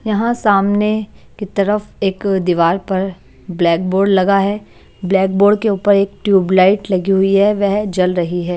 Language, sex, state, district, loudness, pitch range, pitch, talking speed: Hindi, female, Maharashtra, Washim, -15 LUFS, 185-205 Hz, 195 Hz, 170 wpm